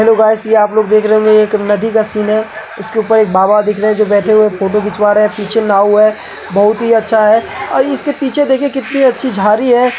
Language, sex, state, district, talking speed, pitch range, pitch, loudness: Hindi, male, Uttar Pradesh, Hamirpur, 260 wpm, 210-225 Hz, 215 Hz, -11 LUFS